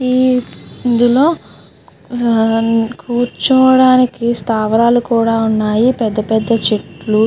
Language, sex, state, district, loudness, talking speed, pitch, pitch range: Telugu, female, Andhra Pradesh, Guntur, -13 LUFS, 80 wpm, 235 Hz, 225-250 Hz